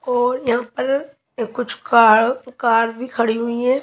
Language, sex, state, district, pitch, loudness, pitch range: Hindi, female, Himachal Pradesh, Shimla, 245 Hz, -18 LUFS, 230-255 Hz